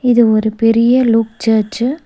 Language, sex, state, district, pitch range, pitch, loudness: Tamil, female, Tamil Nadu, Nilgiris, 220-245 Hz, 230 Hz, -13 LUFS